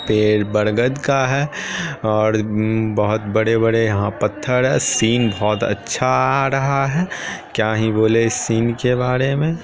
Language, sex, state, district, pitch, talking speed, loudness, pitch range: Hindi, male, Bihar, Purnia, 115 Hz, 170 wpm, -18 LUFS, 110-135 Hz